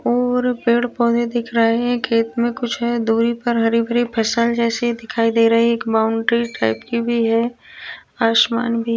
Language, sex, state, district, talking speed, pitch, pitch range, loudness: Hindi, female, Uttar Pradesh, Jyotiba Phule Nagar, 195 wpm, 235 Hz, 230-240 Hz, -18 LUFS